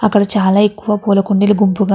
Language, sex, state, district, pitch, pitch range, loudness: Telugu, female, Andhra Pradesh, Guntur, 205 Hz, 200-210 Hz, -13 LUFS